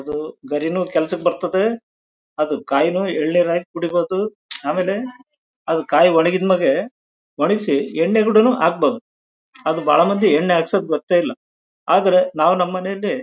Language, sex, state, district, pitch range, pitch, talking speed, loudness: Kannada, male, Karnataka, Bellary, 165-210 Hz, 180 Hz, 120 wpm, -18 LUFS